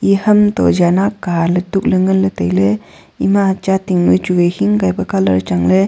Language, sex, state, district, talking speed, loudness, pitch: Wancho, female, Arunachal Pradesh, Longding, 235 wpm, -14 LUFS, 170 Hz